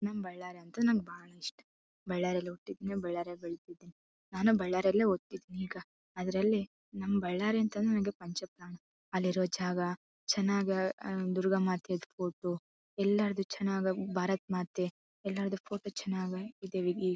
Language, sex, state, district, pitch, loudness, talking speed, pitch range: Kannada, female, Karnataka, Bellary, 185 Hz, -34 LUFS, 115 wpm, 180-200 Hz